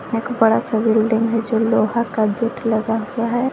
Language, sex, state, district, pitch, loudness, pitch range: Hindi, female, Jharkhand, Garhwa, 225 Hz, -18 LUFS, 220-235 Hz